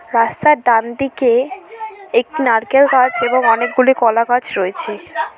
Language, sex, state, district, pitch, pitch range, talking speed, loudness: Bengali, female, West Bengal, Cooch Behar, 255 Hz, 230-280 Hz, 110 wpm, -14 LUFS